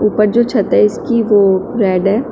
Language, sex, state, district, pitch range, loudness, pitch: Hindi, female, Uttar Pradesh, Shamli, 195-230 Hz, -13 LUFS, 210 Hz